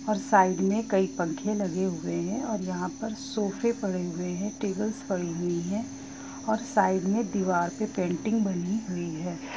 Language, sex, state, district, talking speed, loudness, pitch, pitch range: Hindi, female, Jharkhand, Sahebganj, 175 wpm, -28 LUFS, 200 Hz, 180-220 Hz